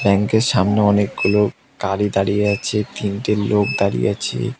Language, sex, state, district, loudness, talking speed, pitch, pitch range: Bengali, male, West Bengal, Cooch Behar, -18 LUFS, 145 wpm, 105 Hz, 100-105 Hz